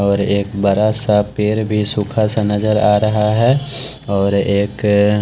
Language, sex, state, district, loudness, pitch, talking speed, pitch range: Hindi, male, Haryana, Charkhi Dadri, -16 LUFS, 105 Hz, 170 wpm, 100-110 Hz